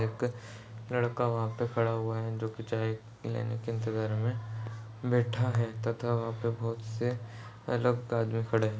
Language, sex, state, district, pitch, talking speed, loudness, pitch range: Hindi, male, Goa, North and South Goa, 115 Hz, 185 wpm, -33 LUFS, 110-120 Hz